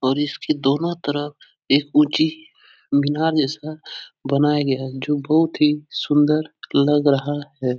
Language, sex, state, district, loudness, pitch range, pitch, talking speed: Hindi, male, Bihar, Supaul, -20 LUFS, 140-155 Hz, 145 Hz, 130 wpm